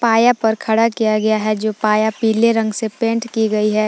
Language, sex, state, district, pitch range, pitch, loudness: Hindi, female, Jharkhand, Palamu, 215-230 Hz, 220 Hz, -16 LUFS